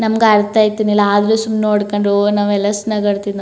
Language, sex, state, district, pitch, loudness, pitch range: Kannada, female, Karnataka, Chamarajanagar, 210 Hz, -14 LUFS, 205-215 Hz